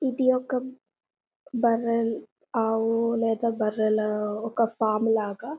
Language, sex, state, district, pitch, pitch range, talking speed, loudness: Telugu, female, Telangana, Nalgonda, 230 Hz, 220-235 Hz, 95 wpm, -26 LUFS